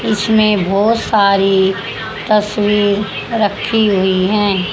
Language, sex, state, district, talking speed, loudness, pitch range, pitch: Hindi, female, Haryana, Charkhi Dadri, 90 wpm, -14 LUFS, 195-215 Hz, 205 Hz